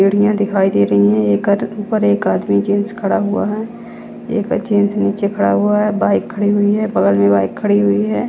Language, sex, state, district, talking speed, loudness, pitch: Hindi, female, Chandigarh, Chandigarh, 215 wpm, -15 LUFS, 205 Hz